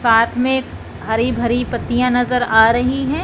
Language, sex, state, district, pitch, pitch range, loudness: Hindi, male, Punjab, Fazilka, 245 Hz, 235-250 Hz, -16 LUFS